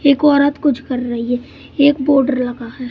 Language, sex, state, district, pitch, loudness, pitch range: Hindi, male, Madhya Pradesh, Katni, 270 Hz, -16 LUFS, 245-285 Hz